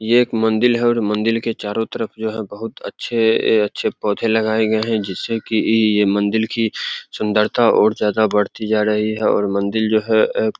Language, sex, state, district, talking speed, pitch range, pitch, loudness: Hindi, male, Bihar, Begusarai, 210 wpm, 105-110 Hz, 110 Hz, -18 LUFS